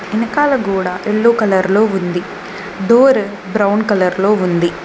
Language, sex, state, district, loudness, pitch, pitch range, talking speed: Telugu, female, Telangana, Mahabubabad, -14 LUFS, 200 Hz, 190-220 Hz, 135 wpm